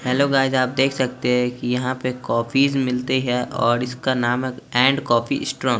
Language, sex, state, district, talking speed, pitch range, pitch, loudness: Hindi, male, Chandigarh, Chandigarh, 205 wpm, 125-130 Hz, 125 Hz, -20 LUFS